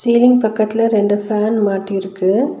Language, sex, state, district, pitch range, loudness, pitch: Tamil, female, Tamil Nadu, Nilgiris, 200-230 Hz, -15 LUFS, 215 Hz